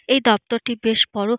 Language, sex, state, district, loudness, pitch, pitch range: Bengali, female, Jharkhand, Jamtara, -19 LUFS, 235 Hz, 220-240 Hz